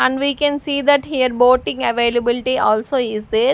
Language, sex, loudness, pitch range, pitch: English, female, -17 LUFS, 235-280 Hz, 255 Hz